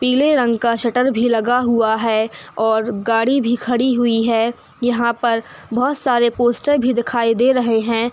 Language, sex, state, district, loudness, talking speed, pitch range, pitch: Hindi, female, Uttar Pradesh, Hamirpur, -17 LUFS, 175 wpm, 230-250 Hz, 235 Hz